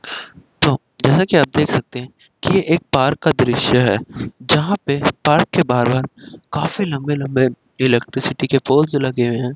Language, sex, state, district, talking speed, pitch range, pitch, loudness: Hindi, male, Chandigarh, Chandigarh, 170 wpm, 125-155 Hz, 135 Hz, -17 LUFS